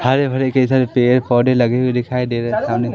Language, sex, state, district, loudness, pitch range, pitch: Hindi, male, Madhya Pradesh, Katni, -16 LUFS, 120-130 Hz, 125 Hz